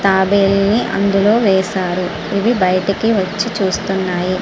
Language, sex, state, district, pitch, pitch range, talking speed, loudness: Telugu, female, Andhra Pradesh, Srikakulam, 195 Hz, 185-205 Hz, 110 wpm, -15 LUFS